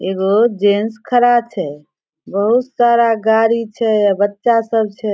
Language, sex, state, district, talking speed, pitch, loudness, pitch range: Maithili, female, Bihar, Samastipur, 140 wpm, 220 Hz, -15 LUFS, 205-235 Hz